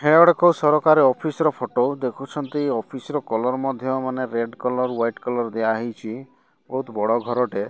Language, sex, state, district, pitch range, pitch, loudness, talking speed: Odia, male, Odisha, Malkangiri, 115-145 Hz, 130 Hz, -21 LUFS, 165 wpm